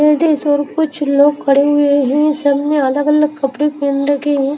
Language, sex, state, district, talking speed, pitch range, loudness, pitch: Hindi, female, Haryana, Rohtak, 195 wpm, 280-300 Hz, -14 LUFS, 290 Hz